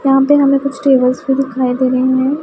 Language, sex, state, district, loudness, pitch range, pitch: Hindi, female, Punjab, Pathankot, -13 LUFS, 255-275 Hz, 270 Hz